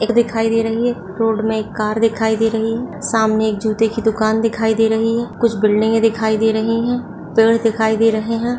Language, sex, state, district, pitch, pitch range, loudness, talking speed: Hindi, female, Uttarakhand, Uttarkashi, 225 Hz, 220-225 Hz, -17 LUFS, 230 wpm